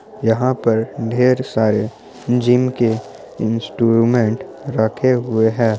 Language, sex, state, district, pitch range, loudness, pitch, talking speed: Hindi, male, Bihar, Muzaffarpur, 110-125 Hz, -17 LUFS, 115 Hz, 105 wpm